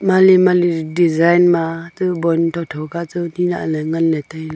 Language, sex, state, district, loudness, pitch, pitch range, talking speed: Wancho, female, Arunachal Pradesh, Longding, -16 LUFS, 170 Hz, 160-175 Hz, 145 wpm